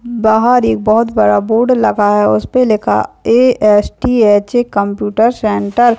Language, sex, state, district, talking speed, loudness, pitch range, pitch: Hindi, male, Uttarakhand, Uttarkashi, 160 wpm, -12 LUFS, 205-240 Hz, 220 Hz